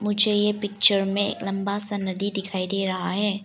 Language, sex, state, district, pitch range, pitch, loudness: Hindi, female, Arunachal Pradesh, Lower Dibang Valley, 195-205 Hz, 200 Hz, -23 LUFS